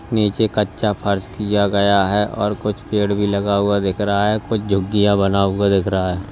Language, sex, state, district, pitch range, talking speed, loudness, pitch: Hindi, male, Uttar Pradesh, Lalitpur, 100-105 Hz, 210 wpm, -18 LUFS, 100 Hz